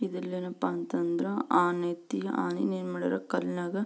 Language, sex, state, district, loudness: Kannada, female, Karnataka, Belgaum, -31 LUFS